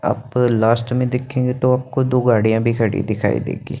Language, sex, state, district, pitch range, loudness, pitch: Hindi, male, Chandigarh, Chandigarh, 115-125 Hz, -18 LUFS, 120 Hz